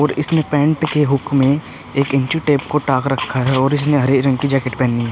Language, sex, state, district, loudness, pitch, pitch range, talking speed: Hindi, male, Uttar Pradesh, Hamirpur, -16 LUFS, 140 Hz, 130-150 Hz, 245 wpm